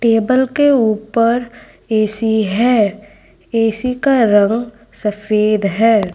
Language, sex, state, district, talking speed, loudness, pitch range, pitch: Hindi, female, Gujarat, Valsad, 95 wpm, -15 LUFS, 215-240 Hz, 225 Hz